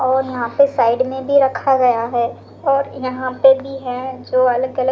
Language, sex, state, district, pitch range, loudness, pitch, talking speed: Hindi, female, Delhi, New Delhi, 250-270 Hz, -17 LUFS, 260 Hz, 195 wpm